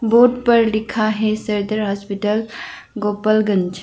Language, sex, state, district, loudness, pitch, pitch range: Hindi, female, Arunachal Pradesh, Lower Dibang Valley, -18 LUFS, 215 Hz, 205-225 Hz